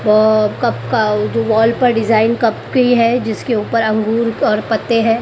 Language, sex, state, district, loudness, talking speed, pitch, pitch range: Hindi, female, Maharashtra, Mumbai Suburban, -14 LUFS, 195 wpm, 225 Hz, 215-230 Hz